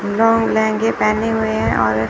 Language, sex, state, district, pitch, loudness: Hindi, male, Chandigarh, Chandigarh, 220 Hz, -16 LUFS